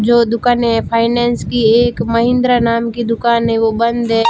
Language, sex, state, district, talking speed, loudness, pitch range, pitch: Hindi, female, Rajasthan, Barmer, 195 wpm, -14 LUFS, 230-240 Hz, 235 Hz